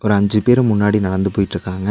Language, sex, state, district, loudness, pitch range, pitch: Tamil, male, Tamil Nadu, Nilgiris, -16 LUFS, 95-105 Hz, 105 Hz